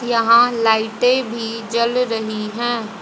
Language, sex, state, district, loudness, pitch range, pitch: Hindi, female, Haryana, Jhajjar, -17 LUFS, 225-240 Hz, 230 Hz